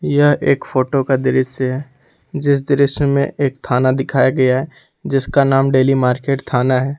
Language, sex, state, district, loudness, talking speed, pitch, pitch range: Hindi, male, Jharkhand, Ranchi, -16 LUFS, 170 wpm, 135 Hz, 130-140 Hz